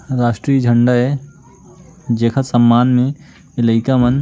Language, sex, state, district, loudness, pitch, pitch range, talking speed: Chhattisgarhi, male, Chhattisgarh, Korba, -15 LUFS, 130 Hz, 120-140 Hz, 140 wpm